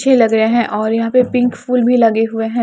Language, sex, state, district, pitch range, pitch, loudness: Hindi, female, Haryana, Charkhi Dadri, 225-245 Hz, 235 Hz, -14 LUFS